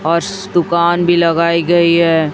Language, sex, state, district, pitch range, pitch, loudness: Hindi, female, Chhattisgarh, Raipur, 170-175 Hz, 170 Hz, -13 LUFS